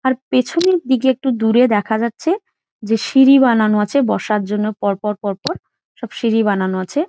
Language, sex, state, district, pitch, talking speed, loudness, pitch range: Bengali, female, West Bengal, Jhargram, 230 Hz, 160 wpm, -16 LUFS, 210-265 Hz